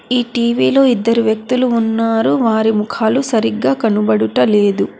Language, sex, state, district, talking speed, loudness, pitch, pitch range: Telugu, female, Telangana, Hyderabad, 120 wpm, -14 LUFS, 225 Hz, 215-235 Hz